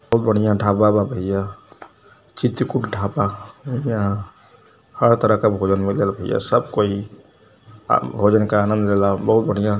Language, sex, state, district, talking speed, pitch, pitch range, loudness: Hindi, male, Uttar Pradesh, Varanasi, 140 wpm, 105 Hz, 100-110 Hz, -19 LUFS